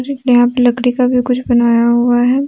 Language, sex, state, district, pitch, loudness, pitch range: Hindi, female, Jharkhand, Deoghar, 245 Hz, -12 LUFS, 240-250 Hz